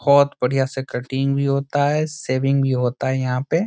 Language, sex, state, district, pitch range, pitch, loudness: Hindi, male, Bihar, Saran, 130-140 Hz, 135 Hz, -20 LUFS